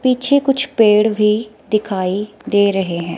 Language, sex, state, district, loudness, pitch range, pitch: Hindi, female, Himachal Pradesh, Shimla, -16 LUFS, 200-250 Hz, 210 Hz